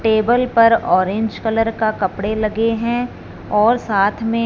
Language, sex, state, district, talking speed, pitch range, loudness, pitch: Hindi, female, Punjab, Fazilka, 150 wpm, 210-230 Hz, -17 LUFS, 225 Hz